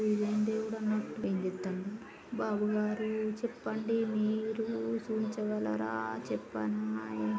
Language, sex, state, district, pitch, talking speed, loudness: Telugu, female, Andhra Pradesh, Srikakulam, 210 Hz, 80 wpm, -34 LUFS